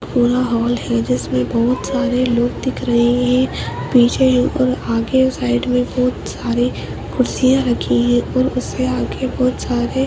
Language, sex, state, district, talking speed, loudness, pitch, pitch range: Hindi, female, Uttarakhand, Tehri Garhwal, 155 wpm, -17 LUFS, 250 Hz, 235-255 Hz